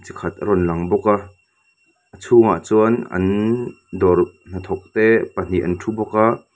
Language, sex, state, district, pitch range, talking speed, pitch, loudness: Mizo, male, Mizoram, Aizawl, 95-110 Hz, 155 wpm, 105 Hz, -18 LUFS